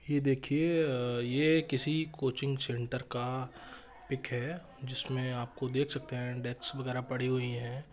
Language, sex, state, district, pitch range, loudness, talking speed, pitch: Hindi, male, Jharkhand, Jamtara, 125-140 Hz, -33 LUFS, 145 wpm, 130 Hz